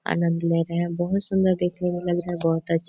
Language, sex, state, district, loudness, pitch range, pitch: Hindi, female, Chhattisgarh, Korba, -24 LUFS, 170-180 Hz, 175 Hz